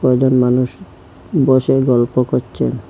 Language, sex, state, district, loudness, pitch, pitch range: Bengali, male, Assam, Hailakandi, -15 LUFS, 125 Hz, 125-130 Hz